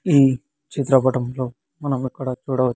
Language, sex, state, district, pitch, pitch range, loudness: Telugu, male, Andhra Pradesh, Sri Satya Sai, 130 Hz, 130-140 Hz, -21 LUFS